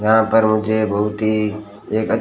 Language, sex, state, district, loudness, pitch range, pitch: Hindi, male, Rajasthan, Bikaner, -18 LUFS, 105-110 Hz, 110 Hz